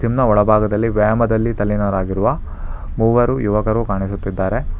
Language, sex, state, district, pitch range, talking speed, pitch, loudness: Kannada, male, Karnataka, Bangalore, 95-110 Hz, 100 wpm, 105 Hz, -17 LUFS